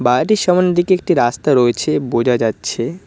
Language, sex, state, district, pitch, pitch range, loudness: Bengali, male, West Bengal, Cooch Behar, 125 Hz, 120-180 Hz, -15 LUFS